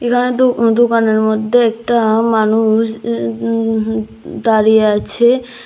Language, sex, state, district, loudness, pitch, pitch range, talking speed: Bengali, female, Tripura, West Tripura, -14 LUFS, 225 Hz, 215-235 Hz, 115 wpm